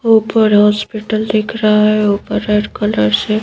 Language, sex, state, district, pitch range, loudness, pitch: Hindi, female, Madhya Pradesh, Bhopal, 210-215 Hz, -13 LUFS, 210 Hz